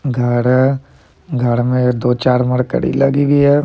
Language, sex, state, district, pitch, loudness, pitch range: Hindi, male, Bihar, Muzaffarpur, 125 Hz, -15 LUFS, 125-140 Hz